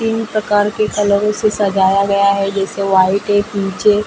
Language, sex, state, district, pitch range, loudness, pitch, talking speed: Hindi, female, Maharashtra, Mumbai Suburban, 195-210 Hz, -15 LUFS, 205 Hz, 190 wpm